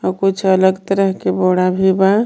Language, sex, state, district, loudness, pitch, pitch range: Bhojpuri, female, Jharkhand, Palamu, -15 LUFS, 190 Hz, 185-195 Hz